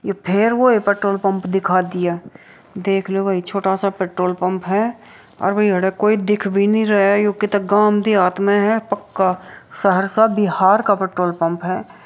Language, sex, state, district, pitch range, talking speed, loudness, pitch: Hindi, female, Bihar, Saharsa, 185-210 Hz, 180 wpm, -17 LUFS, 195 Hz